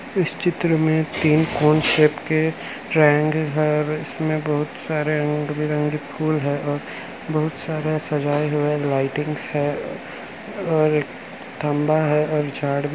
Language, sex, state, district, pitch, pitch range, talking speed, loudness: Hindi, male, Andhra Pradesh, Anantapur, 150 Hz, 150-155 Hz, 130 wpm, -21 LUFS